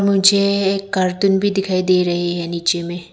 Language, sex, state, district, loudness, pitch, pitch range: Hindi, female, Arunachal Pradesh, Lower Dibang Valley, -17 LUFS, 185 Hz, 175-195 Hz